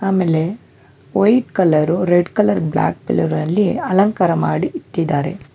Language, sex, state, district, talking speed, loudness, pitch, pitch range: Kannada, male, Karnataka, Bangalore, 95 wpm, -17 LUFS, 180 Hz, 160-200 Hz